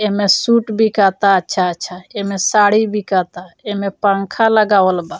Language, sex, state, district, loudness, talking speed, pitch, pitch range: Bhojpuri, female, Bihar, Muzaffarpur, -15 LUFS, 125 wpm, 200 Hz, 185-210 Hz